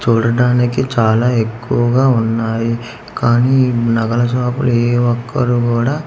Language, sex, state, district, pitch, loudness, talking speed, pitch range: Telugu, male, Andhra Pradesh, Manyam, 120 Hz, -15 LUFS, 120 wpm, 115-125 Hz